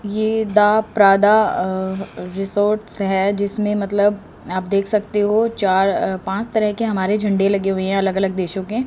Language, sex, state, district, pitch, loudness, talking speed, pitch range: Hindi, female, Haryana, Rohtak, 200 Hz, -18 LUFS, 160 wpm, 195-210 Hz